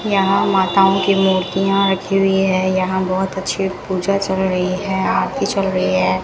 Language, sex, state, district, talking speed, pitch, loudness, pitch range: Hindi, female, Rajasthan, Bikaner, 175 wpm, 190 Hz, -17 LUFS, 185-195 Hz